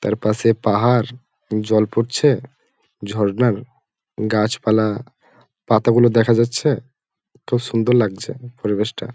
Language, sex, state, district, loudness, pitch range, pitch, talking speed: Bengali, male, West Bengal, Malda, -18 LUFS, 110-120 Hz, 115 Hz, 100 wpm